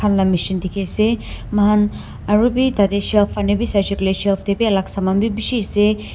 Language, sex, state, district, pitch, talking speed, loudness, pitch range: Nagamese, female, Nagaland, Dimapur, 205 Hz, 255 wpm, -18 LUFS, 195-215 Hz